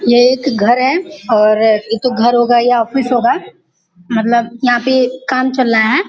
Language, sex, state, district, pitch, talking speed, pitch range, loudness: Hindi, female, Uttar Pradesh, Gorakhpur, 240 Hz, 185 wpm, 225-255 Hz, -13 LUFS